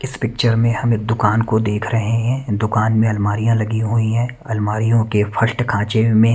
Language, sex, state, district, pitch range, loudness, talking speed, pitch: Hindi, male, Haryana, Charkhi Dadri, 110-115 Hz, -18 LUFS, 190 wpm, 115 Hz